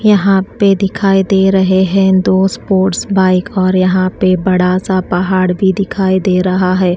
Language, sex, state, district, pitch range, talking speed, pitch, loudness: Hindi, female, Haryana, Charkhi Dadri, 185-195 Hz, 170 wpm, 190 Hz, -12 LUFS